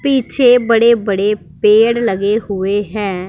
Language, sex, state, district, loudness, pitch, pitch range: Hindi, female, Punjab, Pathankot, -13 LUFS, 210 Hz, 200-235 Hz